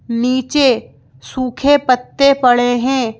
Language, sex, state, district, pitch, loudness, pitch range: Hindi, female, Madhya Pradesh, Bhopal, 250 Hz, -14 LUFS, 240-265 Hz